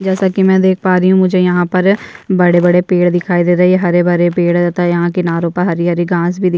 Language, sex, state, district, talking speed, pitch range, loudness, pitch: Hindi, female, Chhattisgarh, Bastar, 245 wpm, 175-185 Hz, -12 LUFS, 180 Hz